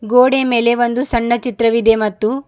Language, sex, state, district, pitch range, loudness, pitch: Kannada, female, Karnataka, Bidar, 230-250 Hz, -14 LUFS, 235 Hz